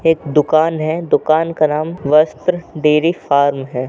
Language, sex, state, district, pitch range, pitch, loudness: Hindi, male, Uttar Pradesh, Jalaun, 150-165 Hz, 155 Hz, -15 LUFS